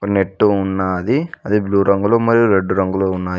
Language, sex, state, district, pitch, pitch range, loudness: Telugu, male, Telangana, Mahabubabad, 100 Hz, 95-105 Hz, -16 LUFS